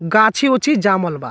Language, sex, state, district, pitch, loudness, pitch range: Bhojpuri, male, Bihar, Muzaffarpur, 215 Hz, -15 LUFS, 175-260 Hz